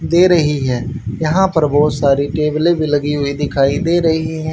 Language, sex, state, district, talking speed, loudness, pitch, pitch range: Hindi, male, Haryana, Rohtak, 200 wpm, -15 LUFS, 150 Hz, 140-160 Hz